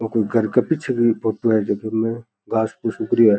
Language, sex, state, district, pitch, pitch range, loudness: Rajasthani, male, Rajasthan, Churu, 115 Hz, 110-115 Hz, -20 LUFS